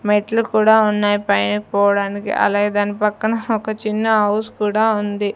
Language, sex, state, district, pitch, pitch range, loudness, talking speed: Telugu, female, Andhra Pradesh, Sri Satya Sai, 210 Hz, 205-220 Hz, -17 LUFS, 155 wpm